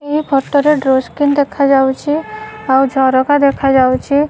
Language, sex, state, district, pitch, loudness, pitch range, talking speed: Odia, female, Odisha, Malkangiri, 280 Hz, -13 LUFS, 265-290 Hz, 125 wpm